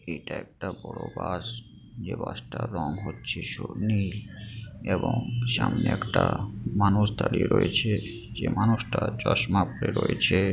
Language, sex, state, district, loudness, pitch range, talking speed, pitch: Bengali, male, West Bengal, Paschim Medinipur, -28 LUFS, 100-115 Hz, 120 wpm, 110 Hz